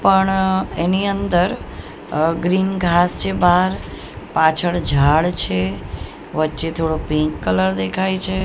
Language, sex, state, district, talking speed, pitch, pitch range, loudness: Gujarati, female, Gujarat, Gandhinagar, 120 wpm, 170 Hz, 150-190 Hz, -18 LUFS